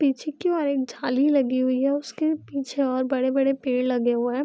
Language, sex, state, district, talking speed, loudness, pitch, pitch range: Hindi, female, Bihar, Madhepura, 215 wpm, -24 LUFS, 270 Hz, 255-285 Hz